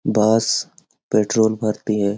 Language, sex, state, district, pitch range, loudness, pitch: Hindi, male, Bihar, Lakhisarai, 105-110 Hz, -19 LUFS, 110 Hz